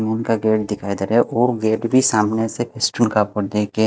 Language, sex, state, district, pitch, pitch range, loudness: Hindi, male, Haryana, Rohtak, 110 Hz, 105-115 Hz, -19 LUFS